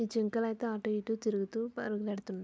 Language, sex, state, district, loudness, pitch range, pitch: Telugu, female, Andhra Pradesh, Visakhapatnam, -35 LUFS, 210-225 Hz, 220 Hz